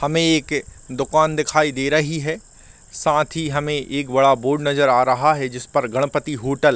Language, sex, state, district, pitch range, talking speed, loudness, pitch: Hindi, male, Jharkhand, Sahebganj, 130-155 Hz, 185 wpm, -19 LUFS, 145 Hz